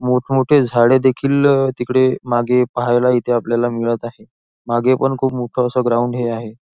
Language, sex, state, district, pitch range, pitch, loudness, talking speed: Marathi, male, Maharashtra, Nagpur, 120-130 Hz, 125 Hz, -16 LUFS, 160 wpm